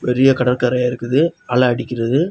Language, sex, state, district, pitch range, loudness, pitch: Tamil, male, Tamil Nadu, Kanyakumari, 125-135 Hz, -17 LUFS, 125 Hz